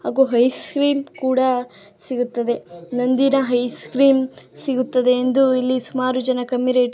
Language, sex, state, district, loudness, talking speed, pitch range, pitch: Kannada, female, Karnataka, Chamarajanagar, -19 LUFS, 130 wpm, 250-265 Hz, 255 Hz